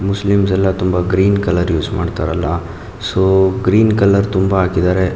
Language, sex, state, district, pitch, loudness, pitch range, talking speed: Kannada, male, Karnataka, Mysore, 95 Hz, -15 LUFS, 90-100 Hz, 140 wpm